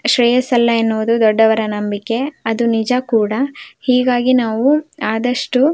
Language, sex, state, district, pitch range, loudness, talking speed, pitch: Kannada, female, Karnataka, Belgaum, 225-255 Hz, -16 LUFS, 85 wpm, 240 Hz